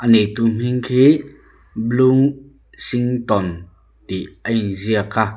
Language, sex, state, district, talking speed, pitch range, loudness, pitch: Mizo, male, Mizoram, Aizawl, 100 wpm, 105-130 Hz, -18 LUFS, 115 Hz